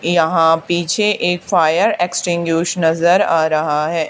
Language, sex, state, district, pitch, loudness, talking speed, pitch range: Hindi, female, Haryana, Charkhi Dadri, 165 Hz, -15 LUFS, 130 wpm, 160-175 Hz